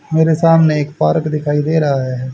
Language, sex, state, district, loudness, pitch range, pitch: Hindi, male, Haryana, Rohtak, -14 LUFS, 130-160 Hz, 150 Hz